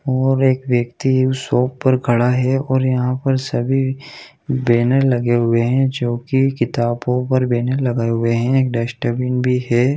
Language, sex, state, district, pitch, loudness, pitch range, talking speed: Hindi, male, Chhattisgarh, Bilaspur, 125 Hz, -17 LUFS, 120-130 Hz, 170 wpm